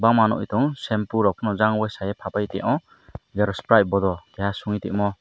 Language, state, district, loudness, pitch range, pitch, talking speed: Kokborok, Tripura, Dhalai, -23 LUFS, 100-110 Hz, 105 Hz, 175 wpm